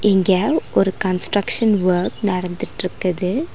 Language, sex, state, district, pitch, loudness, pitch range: Tamil, female, Tamil Nadu, Nilgiris, 190 Hz, -17 LUFS, 185-215 Hz